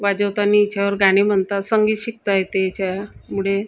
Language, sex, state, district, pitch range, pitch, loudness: Marathi, female, Maharashtra, Gondia, 195-205 Hz, 200 Hz, -19 LUFS